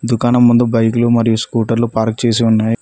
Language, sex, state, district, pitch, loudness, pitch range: Telugu, male, Telangana, Mahabubabad, 115 Hz, -13 LUFS, 115-120 Hz